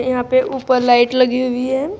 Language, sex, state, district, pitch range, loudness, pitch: Hindi, female, Uttar Pradesh, Shamli, 245-260 Hz, -16 LUFS, 255 Hz